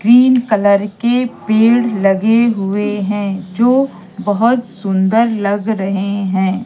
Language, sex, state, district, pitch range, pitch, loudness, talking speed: Hindi, female, Madhya Pradesh, Katni, 195-235 Hz, 210 Hz, -14 LUFS, 115 wpm